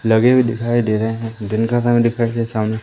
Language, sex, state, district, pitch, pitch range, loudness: Hindi, male, Madhya Pradesh, Umaria, 115 Hz, 110-120 Hz, -17 LUFS